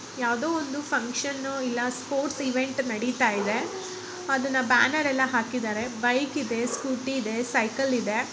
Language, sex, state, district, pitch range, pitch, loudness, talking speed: Kannada, female, Karnataka, Chamarajanagar, 240-275 Hz, 260 Hz, -26 LUFS, 120 wpm